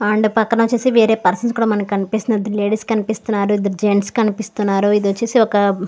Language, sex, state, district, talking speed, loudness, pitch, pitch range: Telugu, female, Andhra Pradesh, Guntur, 185 wpm, -17 LUFS, 210 Hz, 200-225 Hz